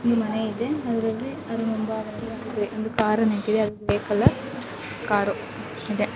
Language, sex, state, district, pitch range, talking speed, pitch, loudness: Kannada, female, Karnataka, Chamarajanagar, 215-230 Hz, 135 wpm, 220 Hz, -26 LUFS